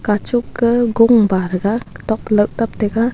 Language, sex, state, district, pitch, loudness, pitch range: Wancho, female, Arunachal Pradesh, Longding, 225 Hz, -16 LUFS, 210-235 Hz